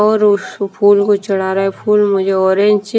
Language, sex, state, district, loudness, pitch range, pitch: Hindi, female, Himachal Pradesh, Shimla, -13 LUFS, 195-210 Hz, 200 Hz